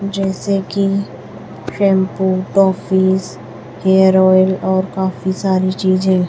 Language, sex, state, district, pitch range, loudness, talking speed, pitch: Hindi, female, Chhattisgarh, Raipur, 185-195 Hz, -15 LUFS, 95 wpm, 190 Hz